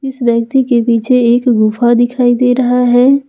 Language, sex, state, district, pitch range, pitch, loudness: Hindi, female, Jharkhand, Ranchi, 235-250 Hz, 245 Hz, -11 LUFS